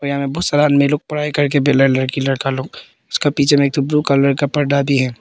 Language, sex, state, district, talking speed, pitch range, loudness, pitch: Hindi, male, Arunachal Pradesh, Papum Pare, 265 wpm, 135-145 Hz, -16 LUFS, 140 Hz